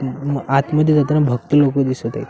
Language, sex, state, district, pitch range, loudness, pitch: Marathi, male, Maharashtra, Washim, 135-145 Hz, -17 LUFS, 140 Hz